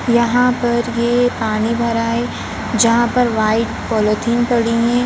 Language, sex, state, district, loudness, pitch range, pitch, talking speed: Hindi, female, Bihar, Gaya, -16 LUFS, 230-240 Hz, 235 Hz, 140 wpm